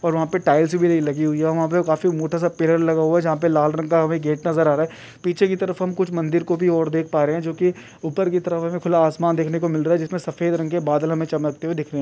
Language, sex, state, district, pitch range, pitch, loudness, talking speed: Hindi, male, Rajasthan, Churu, 160-175 Hz, 165 Hz, -20 LUFS, 330 wpm